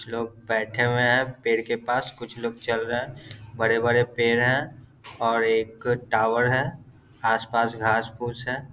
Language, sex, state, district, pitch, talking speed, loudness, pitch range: Hindi, male, Bihar, Gaya, 120 Hz, 160 wpm, -24 LUFS, 115-125 Hz